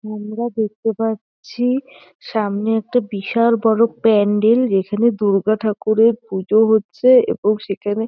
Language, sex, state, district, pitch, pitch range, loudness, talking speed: Bengali, female, West Bengal, North 24 Parganas, 220 Hz, 205-230 Hz, -17 LUFS, 125 wpm